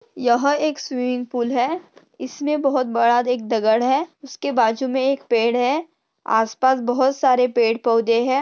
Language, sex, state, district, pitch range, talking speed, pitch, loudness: Hindi, female, Maharashtra, Pune, 240-275 Hz, 165 wpm, 255 Hz, -20 LUFS